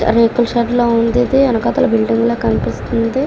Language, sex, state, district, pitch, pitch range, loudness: Telugu, female, Andhra Pradesh, Srikakulam, 230 Hz, 225-245 Hz, -14 LUFS